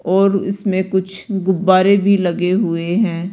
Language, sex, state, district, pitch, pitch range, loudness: Hindi, female, Rajasthan, Jaipur, 190 Hz, 180-195 Hz, -16 LUFS